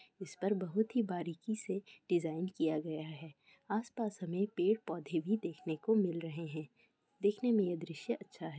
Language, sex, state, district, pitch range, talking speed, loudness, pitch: Hindi, female, Bihar, Kishanganj, 165-215 Hz, 175 wpm, -37 LUFS, 185 Hz